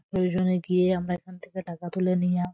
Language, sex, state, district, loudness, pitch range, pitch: Bengali, female, West Bengal, Jhargram, -26 LUFS, 180-185 Hz, 180 Hz